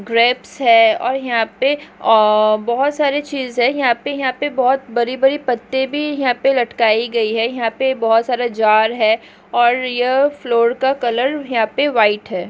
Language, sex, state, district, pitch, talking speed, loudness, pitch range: Hindi, female, Chhattisgarh, Rajnandgaon, 245 Hz, 185 wpm, -16 LUFS, 230-270 Hz